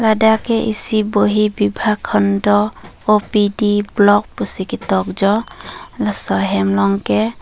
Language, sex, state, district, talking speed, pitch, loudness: Karbi, female, Assam, Karbi Anglong, 120 wpm, 205 Hz, -16 LUFS